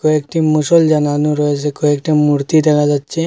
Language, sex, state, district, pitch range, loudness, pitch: Bengali, male, Assam, Hailakandi, 145-155 Hz, -14 LUFS, 150 Hz